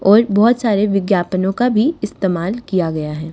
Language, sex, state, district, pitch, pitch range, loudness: Hindi, female, Haryana, Charkhi Dadri, 195 Hz, 185-220 Hz, -16 LUFS